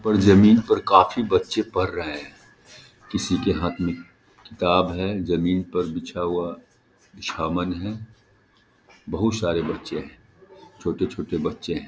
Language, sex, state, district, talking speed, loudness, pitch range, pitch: Hindi, male, Bihar, Muzaffarpur, 140 wpm, -23 LUFS, 85-100 Hz, 90 Hz